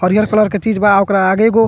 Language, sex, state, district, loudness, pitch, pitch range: Bhojpuri, male, Bihar, Muzaffarpur, -13 LUFS, 205 Hz, 200-215 Hz